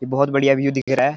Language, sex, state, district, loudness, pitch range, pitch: Hindi, male, Uttarakhand, Uttarkashi, -18 LUFS, 135-140 Hz, 135 Hz